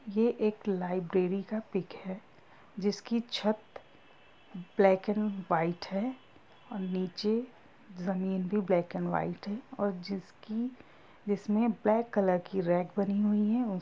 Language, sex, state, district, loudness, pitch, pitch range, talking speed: Hindi, female, Bihar, Gopalganj, -32 LUFS, 200 Hz, 190-215 Hz, 135 wpm